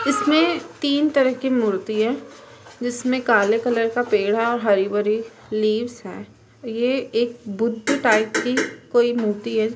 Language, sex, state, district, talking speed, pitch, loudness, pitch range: Hindi, female, Maharashtra, Chandrapur, 155 wpm, 230 Hz, -21 LUFS, 215-250 Hz